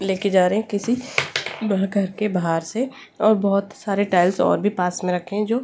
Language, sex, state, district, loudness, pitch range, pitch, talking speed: Hindi, female, Delhi, New Delhi, -21 LUFS, 185-215 Hz, 200 Hz, 225 wpm